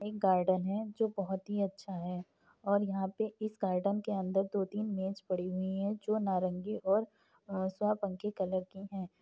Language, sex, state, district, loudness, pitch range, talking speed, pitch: Hindi, female, Uttar Pradesh, Varanasi, -35 LUFS, 190-210 Hz, 180 wpm, 195 Hz